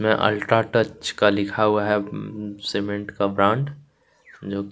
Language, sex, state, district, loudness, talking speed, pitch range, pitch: Hindi, male, Chhattisgarh, Kabirdham, -22 LUFS, 125 wpm, 100-110 Hz, 105 Hz